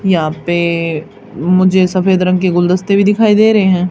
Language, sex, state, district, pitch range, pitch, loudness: Hindi, female, Haryana, Charkhi Dadri, 175-190 Hz, 185 Hz, -12 LUFS